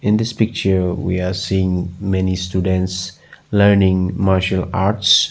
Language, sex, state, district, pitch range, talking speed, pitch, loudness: English, male, Assam, Sonitpur, 90-95 Hz, 125 wpm, 95 Hz, -17 LUFS